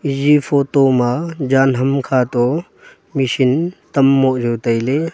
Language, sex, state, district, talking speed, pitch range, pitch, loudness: Wancho, male, Arunachal Pradesh, Longding, 150 wpm, 130-145 Hz, 135 Hz, -16 LUFS